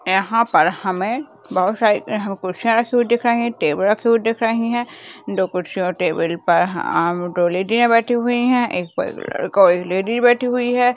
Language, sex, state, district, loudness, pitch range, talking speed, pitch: Hindi, female, Rajasthan, Nagaur, -18 LUFS, 185-240 Hz, 185 wpm, 225 Hz